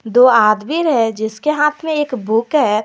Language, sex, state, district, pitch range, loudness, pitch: Hindi, female, Jharkhand, Garhwa, 220-300 Hz, -15 LUFS, 245 Hz